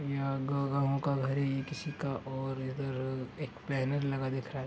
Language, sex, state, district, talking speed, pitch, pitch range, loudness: Hindi, male, Uttar Pradesh, Gorakhpur, 195 wpm, 135 Hz, 135-140 Hz, -34 LUFS